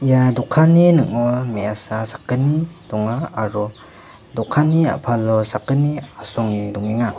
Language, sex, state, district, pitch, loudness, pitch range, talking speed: Garo, male, Meghalaya, West Garo Hills, 120 Hz, -18 LUFS, 110-145 Hz, 100 wpm